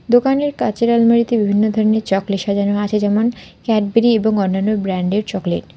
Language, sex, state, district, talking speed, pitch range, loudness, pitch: Bengali, female, West Bengal, Alipurduar, 155 wpm, 200-230 Hz, -16 LUFS, 215 Hz